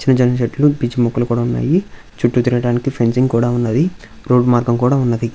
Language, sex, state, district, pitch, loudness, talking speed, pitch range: Telugu, male, Andhra Pradesh, Visakhapatnam, 120 Hz, -16 LUFS, 170 wpm, 120-130 Hz